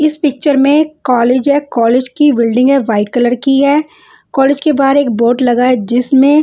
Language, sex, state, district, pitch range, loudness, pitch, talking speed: Hindi, female, Bihar, Patna, 245-290 Hz, -11 LUFS, 270 Hz, 195 wpm